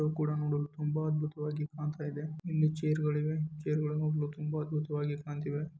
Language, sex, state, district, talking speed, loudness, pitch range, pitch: Kannada, male, Karnataka, Dharwad, 145 wpm, -34 LUFS, 150-155 Hz, 150 Hz